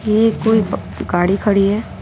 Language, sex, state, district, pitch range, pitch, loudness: Hindi, female, Delhi, New Delhi, 195-220 Hz, 210 Hz, -16 LUFS